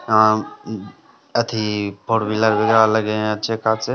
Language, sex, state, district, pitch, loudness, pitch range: Hindi, male, Bihar, Samastipur, 110 Hz, -18 LUFS, 105-110 Hz